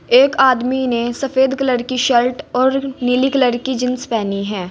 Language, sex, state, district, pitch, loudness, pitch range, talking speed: Hindi, female, Uttar Pradesh, Saharanpur, 255 Hz, -16 LUFS, 240-265 Hz, 180 wpm